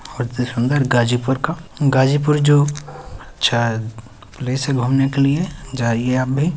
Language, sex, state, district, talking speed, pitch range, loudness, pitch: Hindi, male, Uttar Pradesh, Ghazipur, 145 wpm, 120-145 Hz, -18 LUFS, 130 Hz